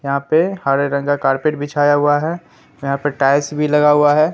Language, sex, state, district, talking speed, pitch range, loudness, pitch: Hindi, male, Bihar, Katihar, 220 wpm, 140-150 Hz, -16 LUFS, 145 Hz